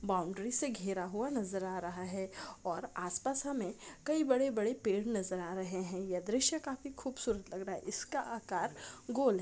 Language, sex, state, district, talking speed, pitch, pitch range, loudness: Hindi, female, Andhra Pradesh, Chittoor, 185 wpm, 215 Hz, 185-265 Hz, -37 LUFS